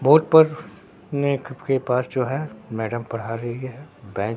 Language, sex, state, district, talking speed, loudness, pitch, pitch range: Hindi, male, Bihar, Katihar, 165 wpm, -22 LUFS, 130 Hz, 115-145 Hz